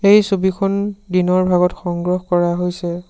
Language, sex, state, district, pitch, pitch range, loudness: Assamese, male, Assam, Sonitpur, 180 Hz, 180-195 Hz, -17 LUFS